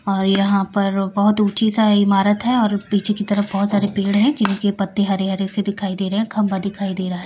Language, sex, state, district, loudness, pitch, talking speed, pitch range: Hindi, female, Bihar, Patna, -18 LUFS, 200 Hz, 240 wpm, 195-205 Hz